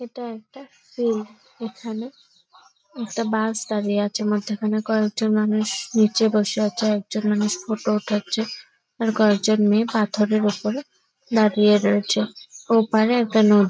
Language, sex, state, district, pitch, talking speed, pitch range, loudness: Bengali, female, West Bengal, Purulia, 215 Hz, 140 wpm, 210-225 Hz, -21 LUFS